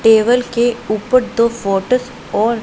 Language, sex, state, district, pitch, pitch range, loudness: Hindi, female, Punjab, Pathankot, 235 Hz, 220-245 Hz, -16 LUFS